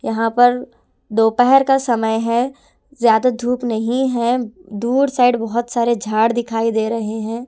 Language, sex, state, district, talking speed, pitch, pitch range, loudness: Hindi, female, Punjab, Kapurthala, 150 wpm, 235 Hz, 225-245 Hz, -17 LUFS